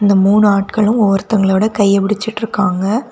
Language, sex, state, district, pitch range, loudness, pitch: Tamil, female, Tamil Nadu, Kanyakumari, 195-215 Hz, -13 LUFS, 205 Hz